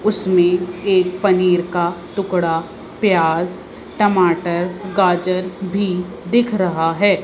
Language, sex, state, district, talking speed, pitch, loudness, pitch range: Hindi, female, Madhya Pradesh, Bhopal, 100 wpm, 185 Hz, -17 LUFS, 175-195 Hz